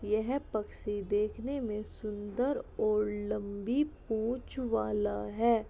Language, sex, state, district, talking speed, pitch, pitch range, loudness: Hindi, female, Uttar Pradesh, Jalaun, 115 wpm, 215 Hz, 205-235 Hz, -34 LUFS